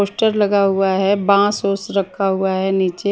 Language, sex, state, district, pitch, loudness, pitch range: Hindi, female, Haryana, Charkhi Dadri, 195 Hz, -17 LUFS, 190-200 Hz